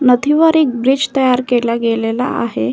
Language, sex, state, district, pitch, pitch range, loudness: Marathi, female, Maharashtra, Solapur, 250 Hz, 230-270 Hz, -14 LUFS